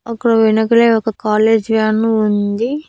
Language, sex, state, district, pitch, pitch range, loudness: Telugu, female, Andhra Pradesh, Annamaya, 225 Hz, 215-230 Hz, -14 LUFS